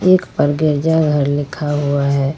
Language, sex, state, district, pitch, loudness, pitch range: Hindi, female, Jharkhand, Ranchi, 145 Hz, -16 LUFS, 140-155 Hz